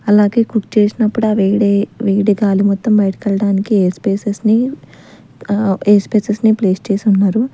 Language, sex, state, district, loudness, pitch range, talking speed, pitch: Telugu, female, Andhra Pradesh, Sri Satya Sai, -14 LUFS, 200-215 Hz, 160 wpm, 205 Hz